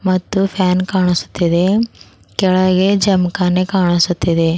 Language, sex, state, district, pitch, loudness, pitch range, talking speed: Kannada, female, Karnataka, Bidar, 185 Hz, -15 LUFS, 180-195 Hz, 90 wpm